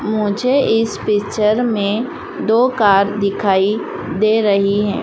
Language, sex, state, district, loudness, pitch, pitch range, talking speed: Hindi, female, Madhya Pradesh, Dhar, -16 LUFS, 210 Hz, 200-225 Hz, 120 wpm